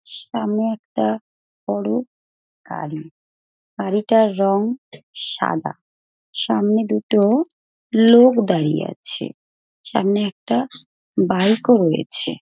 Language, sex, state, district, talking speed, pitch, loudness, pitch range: Bengali, female, West Bengal, North 24 Parganas, 80 wpm, 205 Hz, -19 LUFS, 155-225 Hz